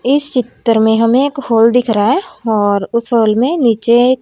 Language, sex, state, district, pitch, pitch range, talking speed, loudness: Hindi, female, Haryana, Rohtak, 235 Hz, 225-260 Hz, 215 wpm, -13 LUFS